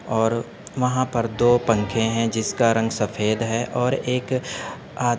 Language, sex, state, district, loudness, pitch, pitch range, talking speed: Hindi, male, Uttar Pradesh, Budaun, -22 LUFS, 115 Hz, 115-125 Hz, 160 wpm